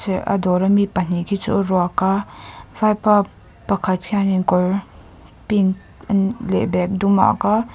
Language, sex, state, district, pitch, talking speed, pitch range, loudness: Mizo, female, Mizoram, Aizawl, 195 Hz, 145 wpm, 185-205 Hz, -19 LUFS